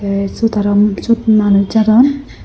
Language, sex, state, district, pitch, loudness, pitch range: Chakma, female, Tripura, Unakoti, 215 Hz, -12 LUFS, 205-230 Hz